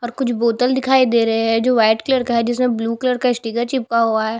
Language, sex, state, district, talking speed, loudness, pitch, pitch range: Hindi, female, Chhattisgarh, Bastar, 275 wpm, -17 LUFS, 235 Hz, 230-250 Hz